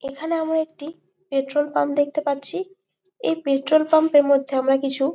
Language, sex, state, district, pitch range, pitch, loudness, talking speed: Bengali, female, West Bengal, Malda, 275-320 Hz, 295 Hz, -21 LUFS, 165 wpm